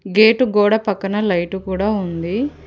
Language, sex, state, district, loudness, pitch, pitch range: Telugu, female, Telangana, Hyderabad, -17 LUFS, 205 Hz, 190-215 Hz